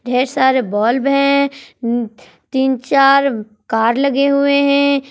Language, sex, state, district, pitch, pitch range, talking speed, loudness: Hindi, female, Jharkhand, Palamu, 265 Hz, 240-275 Hz, 115 wpm, -15 LUFS